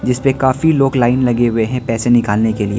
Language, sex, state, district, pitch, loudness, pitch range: Hindi, male, Arunachal Pradesh, Lower Dibang Valley, 120 Hz, -14 LUFS, 115-130 Hz